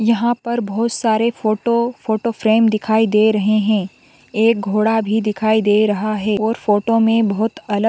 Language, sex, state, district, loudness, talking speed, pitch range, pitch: Hindi, female, Andhra Pradesh, Chittoor, -17 LUFS, 180 wpm, 215-230 Hz, 220 Hz